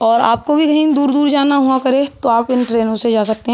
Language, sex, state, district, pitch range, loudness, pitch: Hindi, male, Uttar Pradesh, Budaun, 230-285 Hz, -14 LUFS, 260 Hz